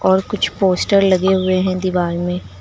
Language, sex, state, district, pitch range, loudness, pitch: Hindi, female, Uttar Pradesh, Lucknow, 180-190 Hz, -16 LUFS, 185 Hz